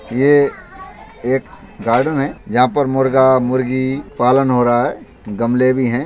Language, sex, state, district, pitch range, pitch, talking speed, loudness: Hindi, male, Uttar Pradesh, Budaun, 125-135 Hz, 130 Hz, 150 wpm, -15 LUFS